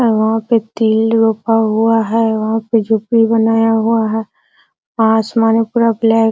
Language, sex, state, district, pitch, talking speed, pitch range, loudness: Hindi, female, Bihar, Araria, 225 Hz, 170 wpm, 220-225 Hz, -14 LUFS